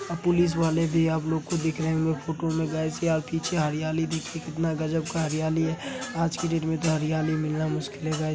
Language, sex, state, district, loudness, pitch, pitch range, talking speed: Hindi, male, Uttar Pradesh, Jalaun, -27 LUFS, 160 Hz, 155-165 Hz, 235 wpm